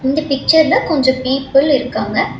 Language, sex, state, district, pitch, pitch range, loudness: Tamil, female, Tamil Nadu, Chennai, 270 Hz, 260-290 Hz, -14 LUFS